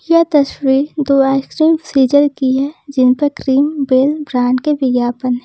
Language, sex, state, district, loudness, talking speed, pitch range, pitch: Hindi, female, Jharkhand, Ranchi, -14 LUFS, 165 wpm, 260-290 Hz, 275 Hz